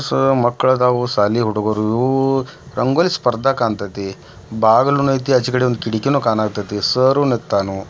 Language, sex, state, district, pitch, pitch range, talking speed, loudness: Kannada, male, Karnataka, Belgaum, 120 Hz, 110-135 Hz, 115 wpm, -17 LUFS